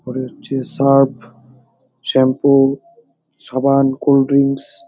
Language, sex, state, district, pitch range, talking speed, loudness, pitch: Bengali, male, West Bengal, Jalpaiguri, 130-140 Hz, 100 wpm, -15 LUFS, 135 Hz